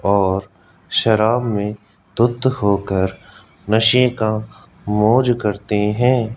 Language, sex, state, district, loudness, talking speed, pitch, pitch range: Hindi, male, Rajasthan, Jaipur, -17 LUFS, 95 wpm, 105 Hz, 100-115 Hz